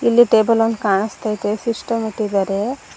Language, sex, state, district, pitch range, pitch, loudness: Kannada, female, Karnataka, Bangalore, 205-230 Hz, 220 Hz, -18 LUFS